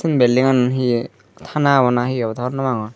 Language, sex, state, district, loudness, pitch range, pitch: Chakma, female, Tripura, Dhalai, -18 LUFS, 120-135 Hz, 125 Hz